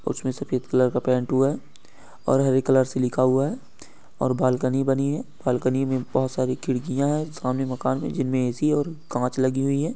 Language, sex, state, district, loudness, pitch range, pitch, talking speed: Hindi, male, Uttar Pradesh, Gorakhpur, -24 LUFS, 130-135 Hz, 130 Hz, 205 wpm